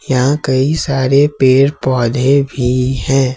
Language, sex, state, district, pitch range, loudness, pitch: Hindi, male, Jharkhand, Ranchi, 130-140 Hz, -13 LUFS, 135 Hz